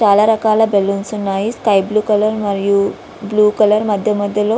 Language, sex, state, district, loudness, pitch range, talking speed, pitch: Telugu, female, Andhra Pradesh, Visakhapatnam, -15 LUFS, 200-215 Hz, 170 wpm, 210 Hz